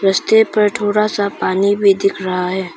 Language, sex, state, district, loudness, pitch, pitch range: Hindi, female, Arunachal Pradesh, Papum Pare, -15 LUFS, 200 Hz, 190-210 Hz